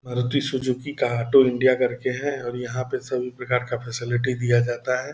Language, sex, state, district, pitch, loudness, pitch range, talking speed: Hindi, male, Bihar, Purnia, 125 Hz, -23 LUFS, 120-130 Hz, 210 wpm